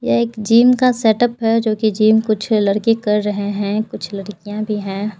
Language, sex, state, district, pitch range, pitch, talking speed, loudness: Hindi, female, Bihar, Purnia, 205-225 Hz, 215 Hz, 220 wpm, -16 LUFS